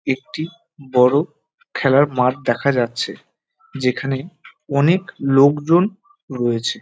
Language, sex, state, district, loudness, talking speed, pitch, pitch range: Bengali, male, West Bengal, North 24 Parganas, -18 LUFS, 95 wpm, 140 Hz, 130-170 Hz